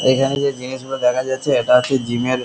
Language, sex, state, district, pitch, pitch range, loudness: Bengali, male, West Bengal, Kolkata, 130 Hz, 125-135 Hz, -18 LUFS